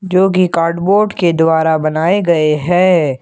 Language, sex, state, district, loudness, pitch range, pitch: Hindi, male, Jharkhand, Ranchi, -13 LUFS, 160-185 Hz, 170 Hz